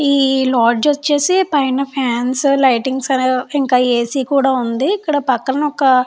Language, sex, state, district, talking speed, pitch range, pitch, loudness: Telugu, female, Andhra Pradesh, Chittoor, 150 wpm, 255-285 Hz, 265 Hz, -15 LUFS